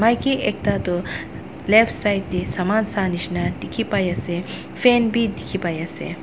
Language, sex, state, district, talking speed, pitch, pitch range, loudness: Nagamese, female, Nagaland, Dimapur, 115 wpm, 200 Hz, 180-230 Hz, -21 LUFS